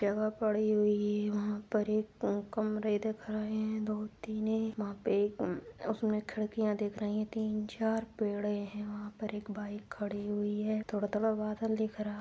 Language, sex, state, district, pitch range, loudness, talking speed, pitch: Hindi, female, Bihar, Sitamarhi, 210-215 Hz, -34 LUFS, 180 wpm, 215 Hz